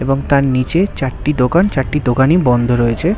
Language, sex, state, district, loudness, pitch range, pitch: Bengali, male, West Bengal, Kolkata, -14 LUFS, 125-160 Hz, 135 Hz